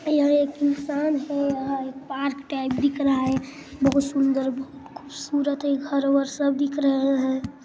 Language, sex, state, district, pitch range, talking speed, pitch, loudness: Hindi, male, Chhattisgarh, Sarguja, 270-285 Hz, 165 wpm, 280 Hz, -24 LUFS